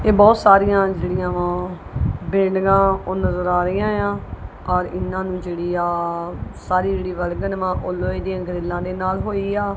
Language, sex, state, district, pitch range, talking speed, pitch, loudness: Punjabi, female, Punjab, Kapurthala, 180-195 Hz, 160 wpm, 185 Hz, -20 LUFS